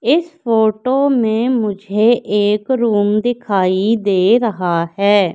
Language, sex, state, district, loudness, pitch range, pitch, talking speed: Hindi, female, Madhya Pradesh, Katni, -15 LUFS, 205-245 Hz, 220 Hz, 110 wpm